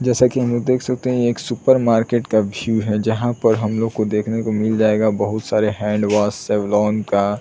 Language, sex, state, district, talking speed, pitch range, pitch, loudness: Hindi, male, Bihar, Saran, 235 wpm, 105-120 Hz, 110 Hz, -18 LUFS